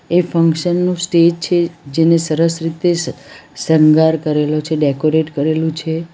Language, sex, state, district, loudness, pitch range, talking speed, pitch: Gujarati, female, Gujarat, Valsad, -15 LUFS, 155-170 Hz, 145 wpm, 160 Hz